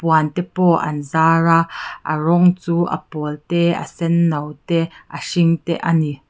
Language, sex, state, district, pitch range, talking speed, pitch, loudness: Mizo, female, Mizoram, Aizawl, 155-170 Hz, 180 wpm, 165 Hz, -18 LUFS